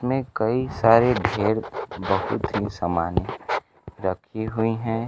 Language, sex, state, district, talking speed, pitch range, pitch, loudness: Hindi, male, Bihar, Kaimur, 120 wpm, 105-120 Hz, 115 Hz, -24 LUFS